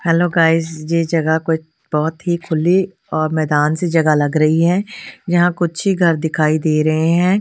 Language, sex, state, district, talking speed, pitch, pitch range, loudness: Hindi, female, Punjab, Kapurthala, 185 wpm, 165 Hz, 155-175 Hz, -16 LUFS